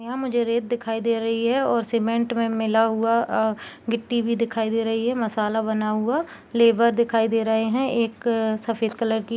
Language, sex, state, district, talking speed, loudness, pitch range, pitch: Hindi, female, Bihar, Supaul, 220 wpm, -23 LUFS, 225-235 Hz, 230 Hz